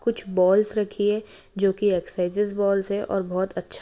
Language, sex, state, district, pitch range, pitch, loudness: Hindi, female, Maharashtra, Nagpur, 190-210 Hz, 200 Hz, -23 LUFS